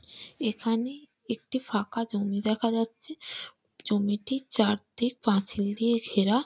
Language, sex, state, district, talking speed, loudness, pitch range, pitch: Bengali, female, West Bengal, Malda, 110 wpm, -29 LUFS, 210-255 Hz, 230 Hz